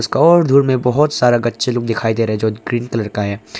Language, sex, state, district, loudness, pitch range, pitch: Hindi, male, Arunachal Pradesh, Longding, -15 LUFS, 110-130 Hz, 120 Hz